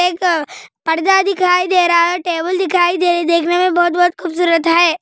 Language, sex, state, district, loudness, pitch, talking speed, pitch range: Hindi, female, Andhra Pradesh, Anantapur, -14 LUFS, 350 Hz, 190 wpm, 340-360 Hz